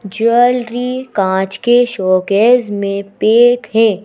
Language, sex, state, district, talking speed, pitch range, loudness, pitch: Hindi, female, Madhya Pradesh, Bhopal, 105 wpm, 200-245 Hz, -13 LUFS, 225 Hz